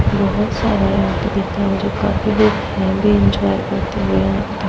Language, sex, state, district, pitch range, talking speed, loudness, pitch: Hindi, female, Bihar, Vaishali, 95-100 Hz, 50 wpm, -17 LUFS, 100 Hz